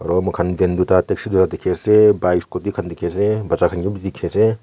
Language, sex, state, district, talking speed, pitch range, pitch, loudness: Nagamese, male, Nagaland, Kohima, 195 wpm, 90-105 Hz, 95 Hz, -18 LUFS